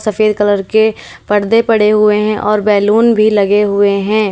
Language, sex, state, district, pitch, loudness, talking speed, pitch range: Hindi, female, Uttar Pradesh, Lalitpur, 210 Hz, -11 LUFS, 180 wpm, 205-215 Hz